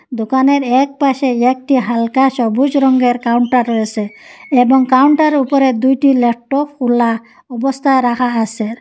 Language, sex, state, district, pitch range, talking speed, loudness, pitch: Bengali, female, Assam, Hailakandi, 240-270 Hz, 125 wpm, -13 LUFS, 255 Hz